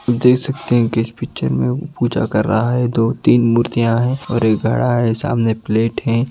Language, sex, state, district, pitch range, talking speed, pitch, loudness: Hindi, male, Uttar Pradesh, Ghazipur, 115-120 Hz, 220 wpm, 115 Hz, -17 LUFS